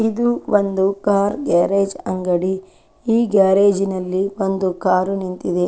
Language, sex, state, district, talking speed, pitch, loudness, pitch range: Kannada, female, Karnataka, Chamarajanagar, 105 wpm, 195 Hz, -18 LUFS, 185-205 Hz